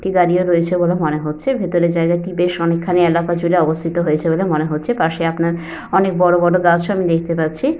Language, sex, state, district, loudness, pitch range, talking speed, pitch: Bengali, female, West Bengal, Jhargram, -16 LUFS, 165-180 Hz, 200 wpm, 170 Hz